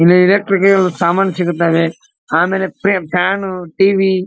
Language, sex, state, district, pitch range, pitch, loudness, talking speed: Kannada, male, Karnataka, Dharwad, 175-195 Hz, 185 Hz, -14 LUFS, 110 wpm